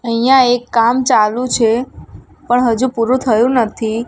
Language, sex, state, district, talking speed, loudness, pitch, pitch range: Gujarati, female, Gujarat, Gandhinagar, 145 wpm, -14 LUFS, 240 Hz, 230-250 Hz